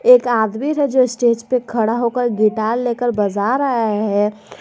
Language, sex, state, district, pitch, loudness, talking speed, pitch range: Hindi, female, Jharkhand, Garhwa, 235 Hz, -17 LUFS, 155 wpm, 215-250 Hz